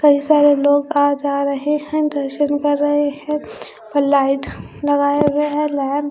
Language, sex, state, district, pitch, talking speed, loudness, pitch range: Hindi, female, Bihar, Katihar, 290 Hz, 165 wpm, -17 LUFS, 285-295 Hz